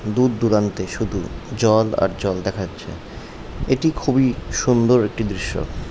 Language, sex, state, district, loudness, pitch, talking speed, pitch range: Bengali, male, West Bengal, North 24 Parganas, -20 LUFS, 105 Hz, 120 wpm, 95-120 Hz